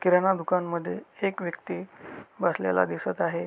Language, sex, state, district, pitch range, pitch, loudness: Marathi, male, Maharashtra, Aurangabad, 145-185 Hz, 175 Hz, -28 LUFS